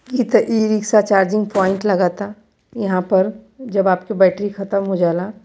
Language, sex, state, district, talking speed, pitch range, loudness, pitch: Bhojpuri, female, Uttar Pradesh, Varanasi, 185 wpm, 190-215 Hz, -17 LUFS, 200 Hz